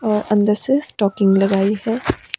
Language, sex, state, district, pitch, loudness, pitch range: Hindi, male, Himachal Pradesh, Shimla, 210 Hz, -17 LUFS, 200-230 Hz